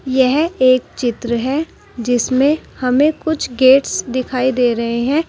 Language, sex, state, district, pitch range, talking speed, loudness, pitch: Hindi, female, Uttar Pradesh, Saharanpur, 245-280 Hz, 135 wpm, -16 LUFS, 260 Hz